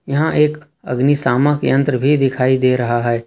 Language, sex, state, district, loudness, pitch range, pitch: Hindi, male, Jharkhand, Ranchi, -16 LUFS, 125-145 Hz, 135 Hz